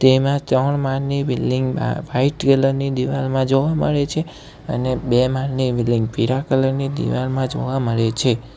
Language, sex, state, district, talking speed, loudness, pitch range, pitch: Gujarati, male, Gujarat, Valsad, 170 wpm, -19 LUFS, 130-140 Hz, 135 Hz